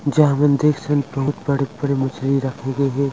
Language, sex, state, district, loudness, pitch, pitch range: Chhattisgarhi, male, Chhattisgarh, Rajnandgaon, -19 LUFS, 140 Hz, 135-145 Hz